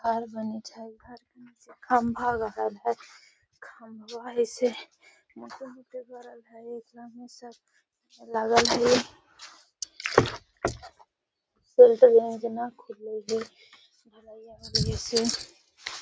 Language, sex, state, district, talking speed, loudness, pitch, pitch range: Magahi, female, Bihar, Gaya, 40 wpm, -25 LUFS, 235 Hz, 225-245 Hz